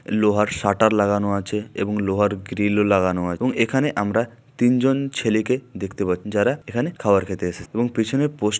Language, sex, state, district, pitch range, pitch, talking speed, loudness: Bengali, male, West Bengal, Malda, 100-120 Hz, 105 Hz, 165 wpm, -21 LUFS